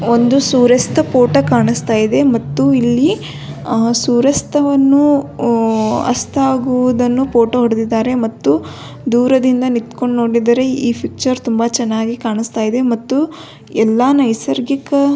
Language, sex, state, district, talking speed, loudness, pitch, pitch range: Kannada, female, Karnataka, Belgaum, 110 wpm, -14 LUFS, 245 Hz, 230-270 Hz